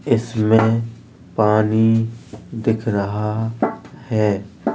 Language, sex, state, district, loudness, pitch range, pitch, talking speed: Hindi, male, Uttar Pradesh, Hamirpur, -19 LUFS, 105-115 Hz, 110 Hz, 65 wpm